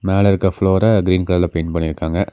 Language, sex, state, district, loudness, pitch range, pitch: Tamil, male, Tamil Nadu, Nilgiris, -16 LUFS, 85-95 Hz, 95 Hz